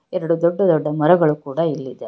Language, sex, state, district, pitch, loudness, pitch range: Kannada, female, Karnataka, Bangalore, 165 Hz, -18 LUFS, 150-170 Hz